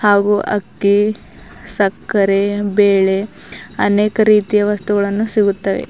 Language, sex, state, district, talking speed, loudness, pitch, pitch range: Kannada, female, Karnataka, Bidar, 80 wpm, -15 LUFS, 205 Hz, 200-210 Hz